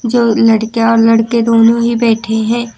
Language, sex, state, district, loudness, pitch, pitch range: Hindi, female, Uttar Pradesh, Lucknow, -11 LUFS, 230 Hz, 225-235 Hz